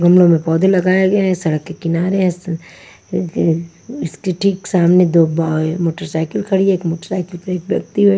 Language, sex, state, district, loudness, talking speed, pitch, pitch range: Hindi, female, Punjab, Pathankot, -16 LUFS, 185 wpm, 175 Hz, 165-190 Hz